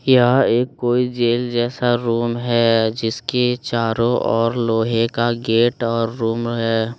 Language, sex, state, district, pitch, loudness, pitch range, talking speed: Hindi, male, Jharkhand, Deoghar, 120 Hz, -18 LUFS, 115-120 Hz, 135 wpm